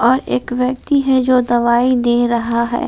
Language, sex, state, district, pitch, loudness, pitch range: Hindi, female, Jharkhand, Palamu, 245 Hz, -15 LUFS, 240-255 Hz